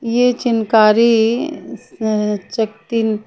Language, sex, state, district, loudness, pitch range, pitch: Hindi, female, Haryana, Charkhi Dadri, -16 LUFS, 215-240 Hz, 225 Hz